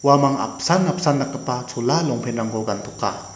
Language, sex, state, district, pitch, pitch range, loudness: Garo, male, Meghalaya, West Garo Hills, 125 Hz, 115-140 Hz, -21 LUFS